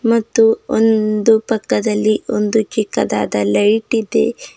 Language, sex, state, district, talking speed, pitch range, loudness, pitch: Kannada, female, Karnataka, Bidar, 80 wpm, 210-225 Hz, -16 LUFS, 220 Hz